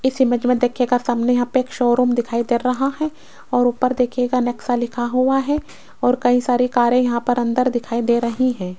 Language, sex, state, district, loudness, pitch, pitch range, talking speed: Hindi, female, Rajasthan, Jaipur, -19 LUFS, 245 Hz, 240-255 Hz, 210 wpm